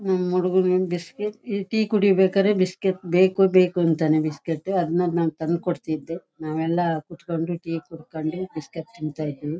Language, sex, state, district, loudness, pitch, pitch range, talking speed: Kannada, female, Karnataka, Shimoga, -23 LUFS, 175 Hz, 160-185 Hz, 125 wpm